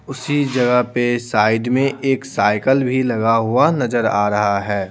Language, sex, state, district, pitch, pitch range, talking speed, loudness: Hindi, male, Bihar, Patna, 120 Hz, 105-130 Hz, 170 wpm, -17 LUFS